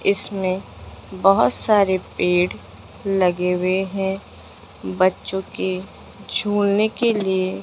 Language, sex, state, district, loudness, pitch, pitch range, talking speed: Hindi, female, Rajasthan, Jaipur, -21 LUFS, 190 Hz, 180-195 Hz, 100 wpm